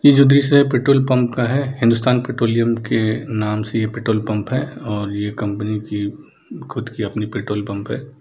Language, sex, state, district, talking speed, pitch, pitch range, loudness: Hindi, male, Bihar, Sitamarhi, 175 wpm, 115 Hz, 105-130 Hz, -19 LUFS